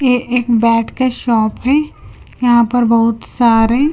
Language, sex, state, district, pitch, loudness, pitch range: Hindi, female, Punjab, Kapurthala, 240 Hz, -14 LUFS, 230-250 Hz